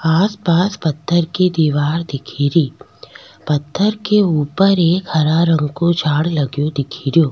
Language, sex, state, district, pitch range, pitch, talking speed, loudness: Rajasthani, female, Rajasthan, Nagaur, 150-175 Hz, 165 Hz, 140 wpm, -16 LUFS